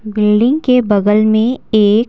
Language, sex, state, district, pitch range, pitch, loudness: Hindi, female, Bihar, Patna, 210-245 Hz, 215 Hz, -12 LUFS